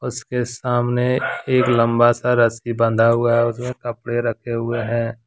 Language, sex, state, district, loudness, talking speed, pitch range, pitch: Hindi, male, Jharkhand, Deoghar, -19 LUFS, 170 wpm, 115-125 Hz, 120 Hz